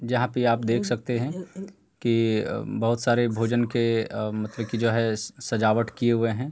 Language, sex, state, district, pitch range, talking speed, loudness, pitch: Hindi, male, Uttar Pradesh, Hamirpur, 115-120 Hz, 185 wpm, -25 LUFS, 115 Hz